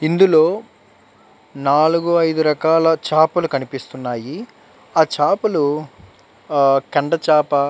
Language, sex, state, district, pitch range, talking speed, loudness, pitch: Telugu, male, Andhra Pradesh, Chittoor, 140-165 Hz, 95 wpm, -17 LUFS, 155 Hz